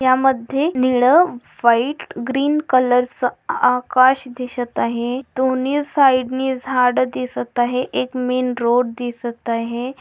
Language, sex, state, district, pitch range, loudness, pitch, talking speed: Marathi, female, Maharashtra, Pune, 240-260 Hz, -18 LUFS, 250 Hz, 125 wpm